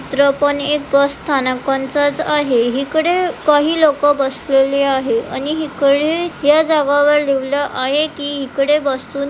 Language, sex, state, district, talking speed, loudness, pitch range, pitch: Marathi, female, Maharashtra, Pune, 135 wpm, -15 LUFS, 275-295 Hz, 285 Hz